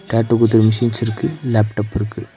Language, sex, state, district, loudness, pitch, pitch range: Tamil, male, Tamil Nadu, Nilgiris, -17 LUFS, 115 Hz, 110-115 Hz